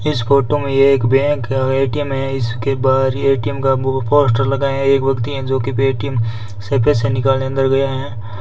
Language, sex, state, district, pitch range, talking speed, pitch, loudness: Hindi, male, Rajasthan, Bikaner, 130-135 Hz, 195 wpm, 135 Hz, -16 LUFS